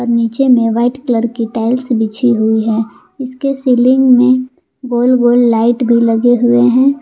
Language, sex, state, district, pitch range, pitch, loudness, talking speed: Hindi, female, Jharkhand, Palamu, 230-255 Hz, 240 Hz, -12 LUFS, 170 wpm